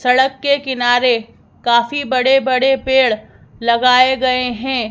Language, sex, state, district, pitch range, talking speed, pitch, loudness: Hindi, male, Madhya Pradesh, Bhopal, 245-265 Hz, 120 wpm, 255 Hz, -15 LUFS